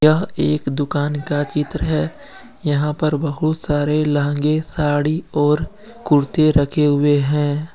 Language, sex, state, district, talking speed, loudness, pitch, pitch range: Hindi, male, Jharkhand, Deoghar, 130 wpm, -18 LUFS, 150 Hz, 145-155 Hz